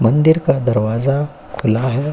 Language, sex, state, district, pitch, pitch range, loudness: Hindi, male, Uttar Pradesh, Jyotiba Phule Nagar, 135 Hz, 115-150 Hz, -17 LUFS